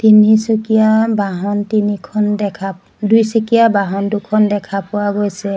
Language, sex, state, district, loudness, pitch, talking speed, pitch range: Assamese, female, Assam, Sonitpur, -15 LUFS, 210 Hz, 110 wpm, 200-220 Hz